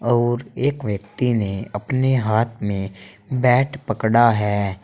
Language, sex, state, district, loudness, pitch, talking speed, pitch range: Hindi, male, Uttar Pradesh, Saharanpur, -20 LUFS, 110 Hz, 125 wpm, 100-125 Hz